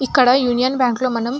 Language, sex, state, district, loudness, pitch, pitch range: Telugu, female, Andhra Pradesh, Anantapur, -17 LUFS, 255 Hz, 245-260 Hz